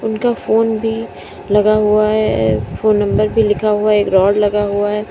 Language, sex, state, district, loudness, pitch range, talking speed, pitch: Hindi, female, Uttar Pradesh, Lalitpur, -14 LUFS, 205-215 Hz, 190 wpm, 210 Hz